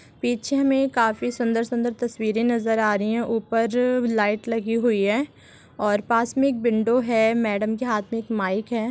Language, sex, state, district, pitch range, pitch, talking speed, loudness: Hindi, female, Jharkhand, Sahebganj, 220-240 Hz, 230 Hz, 175 wpm, -23 LUFS